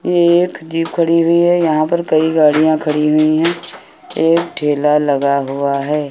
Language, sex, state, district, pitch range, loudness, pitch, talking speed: Hindi, male, Uttar Pradesh, Hamirpur, 150-170 Hz, -14 LUFS, 160 Hz, 175 wpm